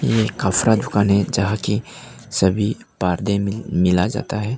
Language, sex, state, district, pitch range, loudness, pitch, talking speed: Hindi, male, Arunachal Pradesh, Papum Pare, 95-110 Hz, -19 LUFS, 105 Hz, 145 wpm